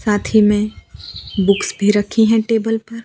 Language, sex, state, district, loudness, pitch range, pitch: Hindi, female, Gujarat, Valsad, -16 LUFS, 200-225 Hz, 210 Hz